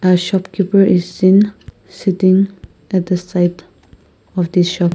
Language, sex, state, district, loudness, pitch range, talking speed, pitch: English, female, Nagaland, Kohima, -15 LUFS, 180-195 Hz, 120 wpm, 185 Hz